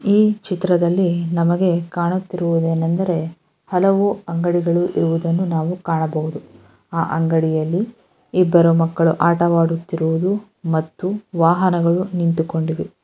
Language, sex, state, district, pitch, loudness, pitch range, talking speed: Kannada, female, Karnataka, Gulbarga, 170 Hz, -19 LUFS, 165-185 Hz, 85 wpm